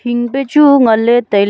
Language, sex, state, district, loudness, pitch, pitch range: Wancho, female, Arunachal Pradesh, Longding, -11 LUFS, 240 Hz, 230-275 Hz